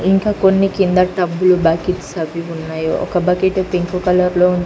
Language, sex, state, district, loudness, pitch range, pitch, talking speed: Telugu, female, Telangana, Mahabubabad, -16 LUFS, 175-190 Hz, 180 Hz, 165 wpm